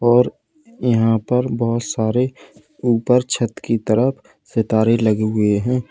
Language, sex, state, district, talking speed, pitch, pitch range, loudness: Hindi, male, Uttar Pradesh, Lalitpur, 130 wpm, 120 Hz, 110-125 Hz, -18 LUFS